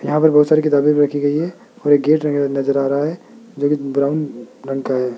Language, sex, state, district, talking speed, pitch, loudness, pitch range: Hindi, male, Rajasthan, Jaipur, 275 wpm, 145 Hz, -17 LUFS, 140-155 Hz